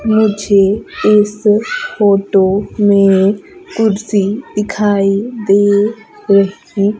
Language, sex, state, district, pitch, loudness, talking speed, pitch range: Hindi, female, Madhya Pradesh, Umaria, 205 Hz, -13 LUFS, 70 wpm, 200-220 Hz